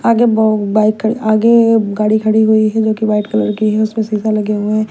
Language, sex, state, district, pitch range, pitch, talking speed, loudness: Hindi, female, Punjab, Kapurthala, 215-220 Hz, 215 Hz, 245 wpm, -13 LUFS